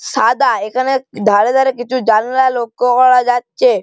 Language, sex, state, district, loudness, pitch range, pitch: Bengali, male, West Bengal, Malda, -13 LUFS, 240-260 Hz, 250 Hz